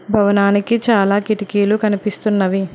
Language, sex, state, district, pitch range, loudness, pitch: Telugu, female, Telangana, Hyderabad, 200-215 Hz, -16 LUFS, 205 Hz